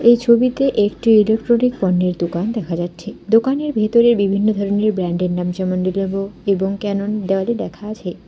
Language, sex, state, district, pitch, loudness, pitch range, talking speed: Bengali, female, West Bengal, Alipurduar, 205 Hz, -17 LUFS, 185-225 Hz, 150 wpm